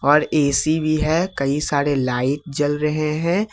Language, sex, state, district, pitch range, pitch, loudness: Hindi, male, Jharkhand, Ranchi, 140-155 Hz, 150 Hz, -20 LUFS